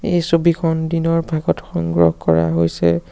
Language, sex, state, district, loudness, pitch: Assamese, male, Assam, Sonitpur, -17 LUFS, 155 Hz